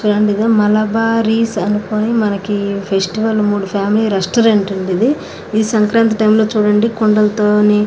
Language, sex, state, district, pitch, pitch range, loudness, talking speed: Telugu, female, Andhra Pradesh, Krishna, 210 Hz, 205-220 Hz, -14 LUFS, 130 wpm